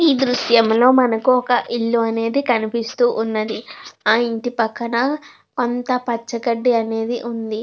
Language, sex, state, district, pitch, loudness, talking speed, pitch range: Telugu, female, Andhra Pradesh, Krishna, 235 Hz, -18 LUFS, 125 wpm, 225-245 Hz